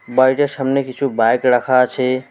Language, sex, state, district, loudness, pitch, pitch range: Bengali, male, West Bengal, Alipurduar, -16 LUFS, 130 Hz, 125-135 Hz